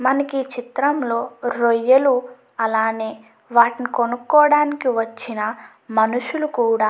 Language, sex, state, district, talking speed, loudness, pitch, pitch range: Telugu, female, Andhra Pradesh, Chittoor, 85 wpm, -19 LUFS, 245 Hz, 225-265 Hz